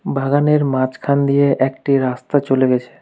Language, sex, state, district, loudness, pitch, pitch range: Bengali, male, West Bengal, Alipurduar, -16 LUFS, 135 Hz, 130-140 Hz